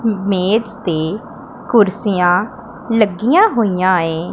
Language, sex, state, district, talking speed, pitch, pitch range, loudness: Punjabi, female, Punjab, Pathankot, 85 wpm, 215 Hz, 185-230 Hz, -15 LUFS